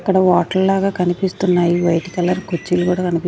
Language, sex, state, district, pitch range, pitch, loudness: Telugu, female, Andhra Pradesh, Sri Satya Sai, 175-190 Hz, 180 Hz, -17 LUFS